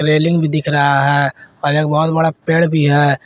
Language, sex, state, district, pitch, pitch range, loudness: Hindi, male, Jharkhand, Garhwa, 150 Hz, 145-160 Hz, -14 LUFS